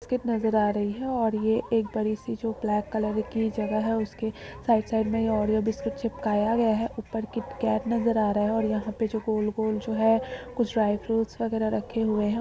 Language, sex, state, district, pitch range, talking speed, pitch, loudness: Hindi, female, Uttar Pradesh, Muzaffarnagar, 215-230 Hz, 215 wpm, 220 Hz, -27 LUFS